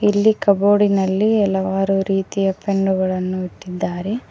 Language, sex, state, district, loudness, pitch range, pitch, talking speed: Kannada, female, Karnataka, Koppal, -18 LUFS, 190-205 Hz, 195 Hz, 95 wpm